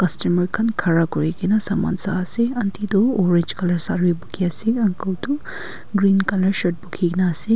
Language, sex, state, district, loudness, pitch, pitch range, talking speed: Nagamese, female, Nagaland, Kohima, -18 LUFS, 190 Hz, 175-210 Hz, 180 wpm